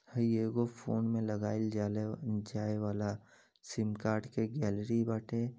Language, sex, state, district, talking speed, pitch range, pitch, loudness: Bhojpuri, male, Uttar Pradesh, Deoria, 130 wpm, 105-115 Hz, 110 Hz, -35 LUFS